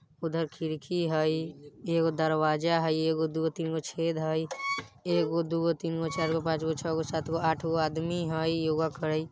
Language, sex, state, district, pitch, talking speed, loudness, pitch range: Bajjika, male, Bihar, Vaishali, 160 Hz, 150 wpm, -30 LUFS, 160-165 Hz